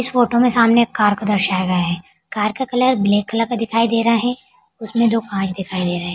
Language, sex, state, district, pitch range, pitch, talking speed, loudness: Hindi, female, Bihar, Araria, 195-240 Hz, 225 Hz, 265 wpm, -17 LUFS